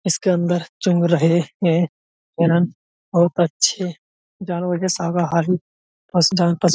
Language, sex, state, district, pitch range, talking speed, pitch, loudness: Hindi, male, Uttar Pradesh, Budaun, 170-180 Hz, 90 wpm, 175 Hz, -19 LUFS